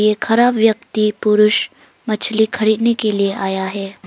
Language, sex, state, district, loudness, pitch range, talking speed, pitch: Hindi, female, Arunachal Pradesh, Longding, -16 LUFS, 200-220 Hz, 145 wpm, 215 Hz